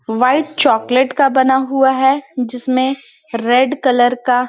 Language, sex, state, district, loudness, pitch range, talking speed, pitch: Hindi, female, Chhattisgarh, Balrampur, -14 LUFS, 250-270 Hz, 135 wpm, 260 Hz